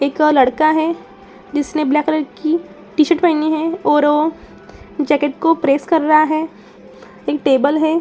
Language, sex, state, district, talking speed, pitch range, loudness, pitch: Hindi, female, Bihar, Saran, 165 wpm, 295-320 Hz, -16 LUFS, 310 Hz